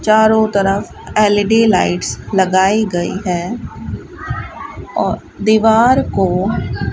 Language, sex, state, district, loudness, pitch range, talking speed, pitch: Hindi, female, Rajasthan, Bikaner, -15 LUFS, 185-220 Hz, 95 wpm, 205 Hz